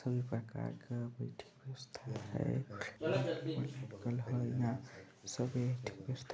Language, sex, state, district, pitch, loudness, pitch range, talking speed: Hindi, male, Chhattisgarh, Balrampur, 125 Hz, -41 LUFS, 120-130 Hz, 45 wpm